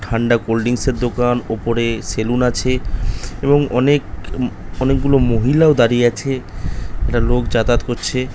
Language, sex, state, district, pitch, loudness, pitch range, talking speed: Bengali, male, West Bengal, North 24 Parganas, 120 Hz, -17 LUFS, 115-130 Hz, 130 wpm